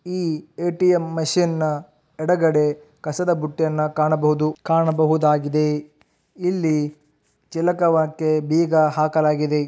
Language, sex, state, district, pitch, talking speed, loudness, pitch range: Kannada, male, Karnataka, Raichur, 155 Hz, 95 wpm, -20 LUFS, 150-165 Hz